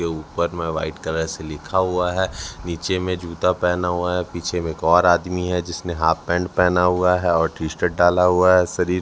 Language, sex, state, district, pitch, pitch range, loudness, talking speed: Hindi, male, Chhattisgarh, Raipur, 90 Hz, 85-90 Hz, -20 LUFS, 225 wpm